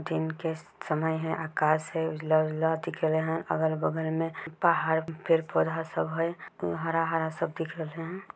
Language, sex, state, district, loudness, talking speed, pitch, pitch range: Chhattisgarhi, female, Chhattisgarh, Bilaspur, -29 LUFS, 145 wpm, 160 Hz, 160-165 Hz